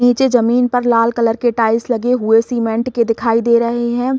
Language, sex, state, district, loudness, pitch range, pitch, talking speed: Hindi, female, Uttar Pradesh, Gorakhpur, -15 LUFS, 230-245 Hz, 235 Hz, 215 wpm